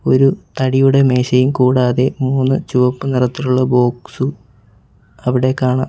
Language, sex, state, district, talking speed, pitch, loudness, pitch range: Malayalam, male, Kerala, Kollam, 100 wpm, 130 Hz, -15 LUFS, 125-130 Hz